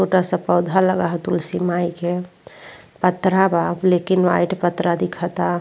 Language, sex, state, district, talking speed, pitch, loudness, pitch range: Bhojpuri, female, Uttar Pradesh, Ghazipur, 160 wpm, 180 Hz, -19 LUFS, 175-185 Hz